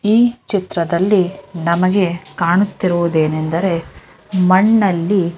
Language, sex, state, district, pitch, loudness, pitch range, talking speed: Kannada, female, Karnataka, Dharwad, 185 Hz, -16 LUFS, 170-200 Hz, 65 wpm